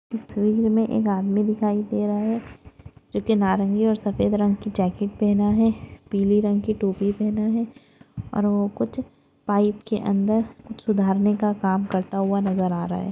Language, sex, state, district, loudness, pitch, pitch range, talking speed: Hindi, female, Chhattisgarh, Rajnandgaon, -23 LUFS, 205 Hz, 195-215 Hz, 185 wpm